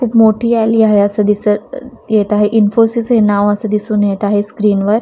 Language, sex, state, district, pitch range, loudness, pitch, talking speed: Marathi, female, Maharashtra, Washim, 205-225 Hz, -12 LUFS, 210 Hz, 205 wpm